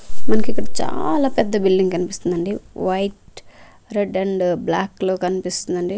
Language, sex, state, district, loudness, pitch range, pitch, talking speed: Telugu, female, Andhra Pradesh, Manyam, -21 LUFS, 180-200 Hz, 190 Hz, 110 wpm